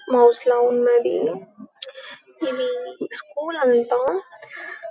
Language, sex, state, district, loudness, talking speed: Telugu, female, Telangana, Karimnagar, -21 LUFS, 75 wpm